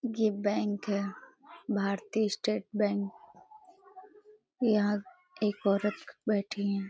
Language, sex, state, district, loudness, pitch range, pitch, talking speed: Hindi, female, Uttar Pradesh, Deoria, -31 LUFS, 200-260 Hz, 210 Hz, 105 wpm